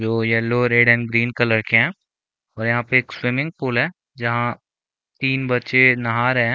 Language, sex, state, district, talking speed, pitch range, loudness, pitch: Hindi, male, Chhattisgarh, Bilaspur, 190 wpm, 115-130 Hz, -18 LUFS, 120 Hz